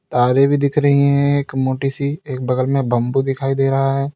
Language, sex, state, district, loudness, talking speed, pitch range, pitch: Hindi, male, Uttar Pradesh, Lalitpur, -17 LUFS, 230 wpm, 130-140 Hz, 135 Hz